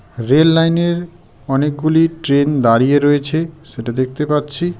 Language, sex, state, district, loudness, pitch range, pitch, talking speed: Bengali, male, West Bengal, Darjeeling, -15 LUFS, 135-165 Hz, 150 Hz, 100 wpm